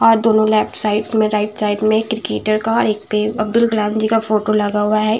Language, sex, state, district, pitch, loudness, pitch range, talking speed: Hindi, female, Bihar, Patna, 215 Hz, -16 LUFS, 210-220 Hz, 240 wpm